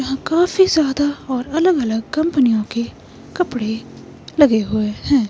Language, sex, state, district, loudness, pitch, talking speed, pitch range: Hindi, female, Himachal Pradesh, Shimla, -18 LUFS, 270 Hz, 115 wpm, 225-315 Hz